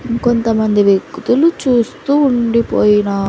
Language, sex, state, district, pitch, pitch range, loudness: Telugu, female, Andhra Pradesh, Sri Satya Sai, 235 Hz, 210-245 Hz, -14 LUFS